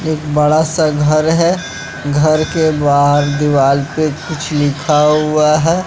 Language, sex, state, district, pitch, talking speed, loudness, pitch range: Hindi, male, Bihar, West Champaran, 155 Hz, 145 wpm, -13 LUFS, 145-155 Hz